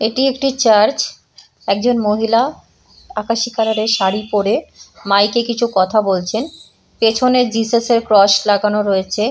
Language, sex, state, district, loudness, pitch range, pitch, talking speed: Bengali, female, West Bengal, Purulia, -15 LUFS, 205-235 Hz, 220 Hz, 135 wpm